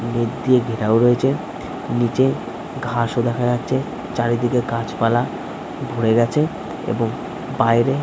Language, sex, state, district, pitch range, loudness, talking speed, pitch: Bengali, male, West Bengal, Kolkata, 115-130 Hz, -20 LUFS, 120 wpm, 120 Hz